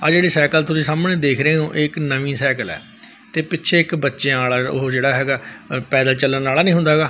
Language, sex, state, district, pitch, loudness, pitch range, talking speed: Punjabi, male, Punjab, Fazilka, 145 Hz, -17 LUFS, 135-160 Hz, 230 wpm